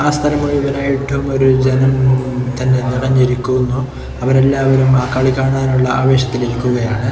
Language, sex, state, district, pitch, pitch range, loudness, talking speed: Malayalam, male, Kerala, Kozhikode, 130 Hz, 125-135 Hz, -14 LUFS, 100 wpm